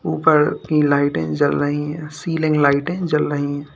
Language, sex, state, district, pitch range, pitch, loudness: Hindi, male, Uttar Pradesh, Lalitpur, 145-155 Hz, 150 Hz, -19 LUFS